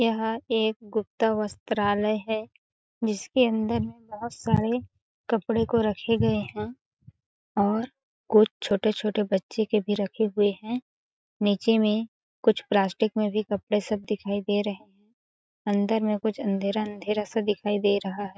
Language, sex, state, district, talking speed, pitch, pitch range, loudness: Hindi, female, Chhattisgarh, Balrampur, 145 wpm, 215 Hz, 205-225 Hz, -26 LUFS